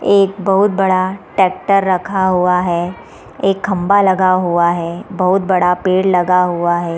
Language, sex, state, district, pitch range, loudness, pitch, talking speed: Hindi, female, Bihar, East Champaran, 180-195 Hz, -14 LUFS, 185 Hz, 155 wpm